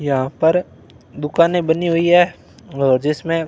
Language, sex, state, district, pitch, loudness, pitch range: Hindi, male, Rajasthan, Bikaner, 165 Hz, -17 LUFS, 145-170 Hz